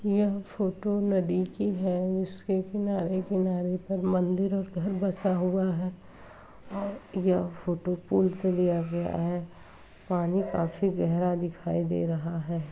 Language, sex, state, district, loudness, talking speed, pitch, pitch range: Hindi, female, Uttar Pradesh, Muzaffarnagar, -29 LUFS, 130 wpm, 185 Hz, 175-195 Hz